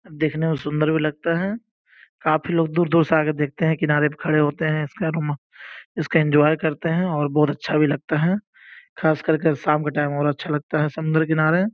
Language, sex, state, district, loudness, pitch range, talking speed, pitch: Hindi, male, Uttar Pradesh, Gorakhpur, -21 LUFS, 150-165 Hz, 205 wpm, 155 Hz